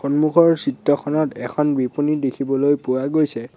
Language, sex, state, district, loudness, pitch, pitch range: Assamese, male, Assam, Sonitpur, -19 LUFS, 145 Hz, 135-150 Hz